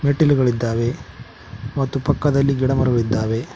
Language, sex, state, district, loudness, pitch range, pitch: Kannada, male, Karnataka, Koppal, -19 LUFS, 115-140 Hz, 130 Hz